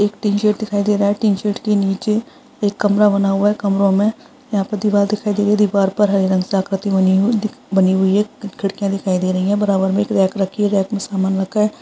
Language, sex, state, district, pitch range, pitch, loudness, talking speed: Hindi, female, Uttar Pradesh, Budaun, 195-210 Hz, 205 Hz, -17 LUFS, 270 wpm